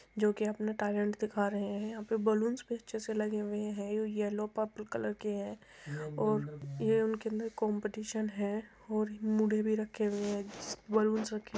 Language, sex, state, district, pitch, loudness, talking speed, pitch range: Hindi, female, Uttar Pradesh, Muzaffarnagar, 215 Hz, -35 LUFS, 180 wpm, 210-220 Hz